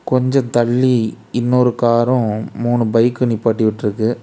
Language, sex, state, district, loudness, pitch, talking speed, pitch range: Tamil, male, Tamil Nadu, Kanyakumari, -16 LUFS, 120 Hz, 115 wpm, 115-125 Hz